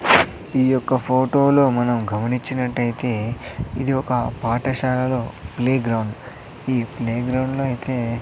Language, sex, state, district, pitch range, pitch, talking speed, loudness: Telugu, male, Andhra Pradesh, Sri Satya Sai, 115-130 Hz, 125 Hz, 110 wpm, -21 LUFS